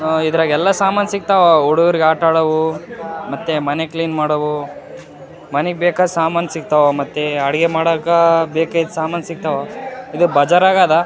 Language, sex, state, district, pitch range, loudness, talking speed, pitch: Kannada, male, Karnataka, Raichur, 155-170 Hz, -15 LUFS, 125 wpm, 165 Hz